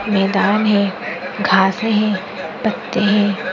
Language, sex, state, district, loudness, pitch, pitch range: Hindi, female, Maharashtra, Nagpur, -17 LUFS, 205 Hz, 190-210 Hz